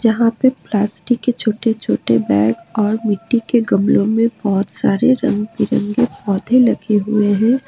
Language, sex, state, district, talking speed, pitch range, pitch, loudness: Hindi, female, Jharkhand, Ranchi, 155 wpm, 205-240 Hz, 220 Hz, -16 LUFS